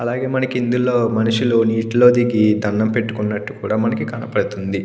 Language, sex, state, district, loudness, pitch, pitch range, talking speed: Telugu, male, Andhra Pradesh, Krishna, -18 LUFS, 115 Hz, 105-120 Hz, 135 wpm